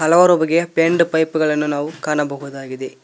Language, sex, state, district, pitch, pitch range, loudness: Kannada, male, Karnataka, Koppal, 155 Hz, 145-165 Hz, -17 LUFS